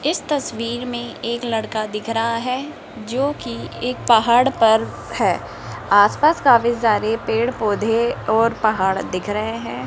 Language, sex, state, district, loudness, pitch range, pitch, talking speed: Hindi, female, Rajasthan, Jaipur, -19 LUFS, 215-245 Hz, 230 Hz, 145 wpm